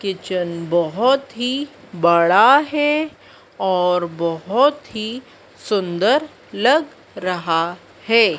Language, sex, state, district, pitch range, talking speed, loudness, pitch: Hindi, female, Madhya Pradesh, Dhar, 175-275 Hz, 85 wpm, -18 LUFS, 205 Hz